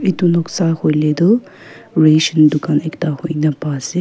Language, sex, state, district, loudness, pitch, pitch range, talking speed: Nagamese, female, Nagaland, Kohima, -15 LUFS, 160 Hz, 150-170 Hz, 150 wpm